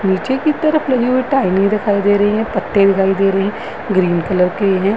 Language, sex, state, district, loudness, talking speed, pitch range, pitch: Hindi, female, Uttar Pradesh, Varanasi, -15 LUFS, 240 wpm, 195-245 Hz, 200 Hz